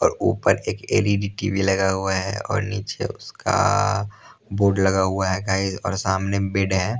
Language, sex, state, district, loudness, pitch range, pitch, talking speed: Hindi, male, Punjab, Pathankot, -22 LUFS, 95-105 Hz, 100 Hz, 190 wpm